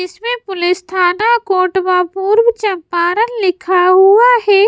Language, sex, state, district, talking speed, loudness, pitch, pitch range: Hindi, female, Bihar, West Champaran, 115 wpm, -13 LUFS, 380 Hz, 365-440 Hz